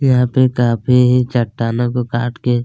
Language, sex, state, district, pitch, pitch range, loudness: Hindi, male, Chhattisgarh, Kabirdham, 125 Hz, 120-125 Hz, -15 LUFS